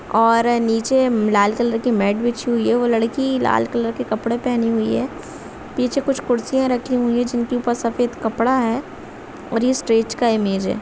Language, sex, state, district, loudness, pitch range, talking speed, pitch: Hindi, female, Chhattisgarh, Bilaspur, -19 LUFS, 225-250 Hz, 200 wpm, 235 Hz